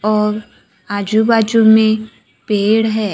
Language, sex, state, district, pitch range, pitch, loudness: Hindi, female, Maharashtra, Gondia, 210-220 Hz, 215 Hz, -14 LUFS